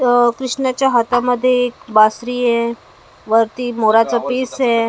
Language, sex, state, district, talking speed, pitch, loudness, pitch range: Marathi, female, Maharashtra, Mumbai Suburban, 125 wpm, 245 Hz, -16 LUFS, 230-255 Hz